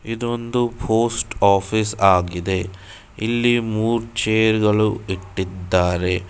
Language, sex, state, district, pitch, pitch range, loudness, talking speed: Kannada, male, Karnataka, Bangalore, 110 Hz, 95-115 Hz, -20 LUFS, 95 wpm